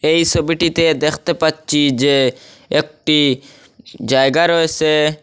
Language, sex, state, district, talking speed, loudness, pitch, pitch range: Bengali, male, Assam, Hailakandi, 105 wpm, -15 LUFS, 155 Hz, 145-165 Hz